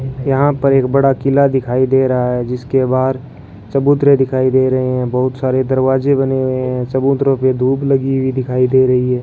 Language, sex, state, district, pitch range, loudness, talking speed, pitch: Hindi, male, Rajasthan, Bikaner, 130-135 Hz, -14 LUFS, 200 wpm, 130 Hz